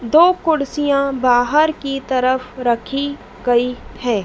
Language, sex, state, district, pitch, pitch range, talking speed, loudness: Hindi, female, Madhya Pradesh, Dhar, 270 Hz, 245-290 Hz, 115 wpm, -17 LUFS